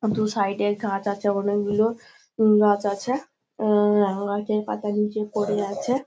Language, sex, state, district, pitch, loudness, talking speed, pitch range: Bengali, female, West Bengal, Malda, 210 Hz, -23 LUFS, 150 wpm, 205-220 Hz